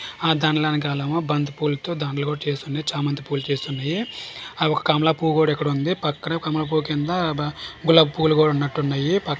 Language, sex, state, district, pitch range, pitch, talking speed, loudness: Telugu, male, Telangana, Nalgonda, 145-160 Hz, 150 Hz, 165 wpm, -22 LUFS